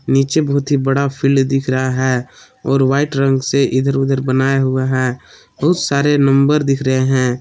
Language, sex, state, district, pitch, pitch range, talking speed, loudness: Hindi, male, Jharkhand, Palamu, 135 Hz, 130-140 Hz, 185 wpm, -15 LUFS